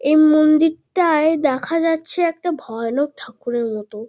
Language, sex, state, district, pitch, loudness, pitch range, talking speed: Bengali, female, West Bengal, Kolkata, 305 Hz, -18 LUFS, 245-325 Hz, 115 wpm